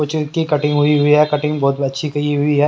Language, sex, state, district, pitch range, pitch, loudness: Hindi, male, Haryana, Jhajjar, 145-150 Hz, 150 Hz, -16 LUFS